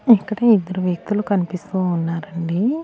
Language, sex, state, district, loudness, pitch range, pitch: Telugu, female, Andhra Pradesh, Annamaya, -20 LUFS, 175-215 Hz, 190 Hz